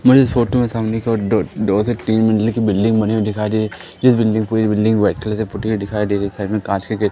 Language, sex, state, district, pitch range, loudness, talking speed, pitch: Hindi, male, Madhya Pradesh, Katni, 105-115 Hz, -17 LUFS, 305 wpm, 110 Hz